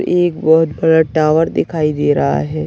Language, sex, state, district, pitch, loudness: Hindi, male, Bihar, Bhagalpur, 155 Hz, -14 LUFS